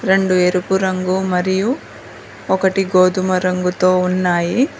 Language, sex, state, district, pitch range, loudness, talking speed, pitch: Telugu, female, Telangana, Mahabubabad, 180-190 Hz, -16 LUFS, 100 wpm, 185 Hz